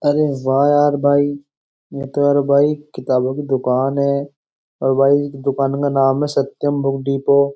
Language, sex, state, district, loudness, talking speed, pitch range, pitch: Hindi, male, Uttar Pradesh, Jyotiba Phule Nagar, -17 LUFS, 175 wpm, 135-145 Hz, 140 Hz